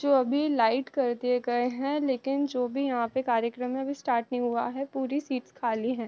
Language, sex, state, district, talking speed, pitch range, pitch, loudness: Hindi, female, Uttar Pradesh, Jalaun, 215 wpm, 240-275 Hz, 255 Hz, -28 LUFS